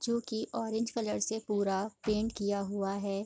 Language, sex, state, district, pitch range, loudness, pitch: Hindi, female, Bihar, Gopalganj, 200-225 Hz, -34 LUFS, 210 Hz